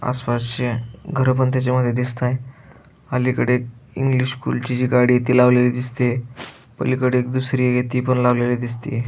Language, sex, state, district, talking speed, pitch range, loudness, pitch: Marathi, male, Maharashtra, Aurangabad, 140 wpm, 125-130 Hz, -20 LUFS, 125 Hz